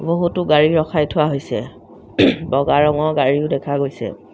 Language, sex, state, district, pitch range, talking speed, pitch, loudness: Assamese, female, Assam, Sonitpur, 140-155 Hz, 140 wpm, 150 Hz, -17 LUFS